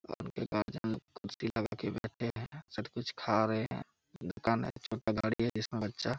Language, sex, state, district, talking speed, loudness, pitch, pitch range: Hindi, male, Jharkhand, Jamtara, 115 wpm, -36 LUFS, 110 Hz, 110-115 Hz